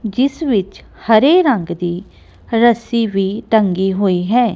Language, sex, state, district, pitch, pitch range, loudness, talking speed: Punjabi, female, Punjab, Kapurthala, 220 Hz, 190-240 Hz, -15 LUFS, 130 wpm